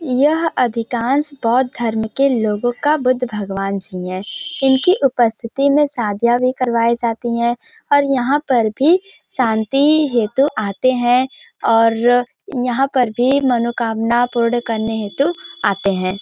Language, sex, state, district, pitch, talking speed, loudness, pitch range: Hindi, female, Uttar Pradesh, Varanasi, 245 Hz, 140 wpm, -17 LUFS, 225-270 Hz